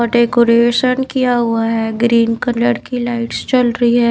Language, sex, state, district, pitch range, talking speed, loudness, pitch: Hindi, female, Maharashtra, Mumbai Suburban, 235-245 Hz, 175 wpm, -14 LUFS, 235 Hz